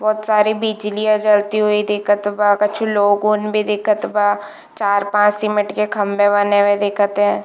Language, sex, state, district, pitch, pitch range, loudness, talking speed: Hindi, female, Chhattisgarh, Bilaspur, 210 Hz, 205-210 Hz, -16 LUFS, 170 wpm